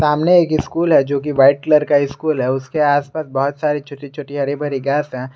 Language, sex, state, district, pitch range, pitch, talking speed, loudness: Hindi, male, Jharkhand, Garhwa, 140-150 Hz, 145 Hz, 235 wpm, -17 LUFS